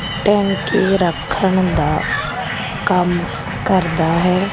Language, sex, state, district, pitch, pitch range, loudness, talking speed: Punjabi, female, Punjab, Kapurthala, 180 Hz, 175-195 Hz, -17 LUFS, 80 wpm